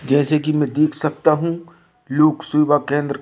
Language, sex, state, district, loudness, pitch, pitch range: Hindi, male, Madhya Pradesh, Katni, -18 LUFS, 150 Hz, 145-155 Hz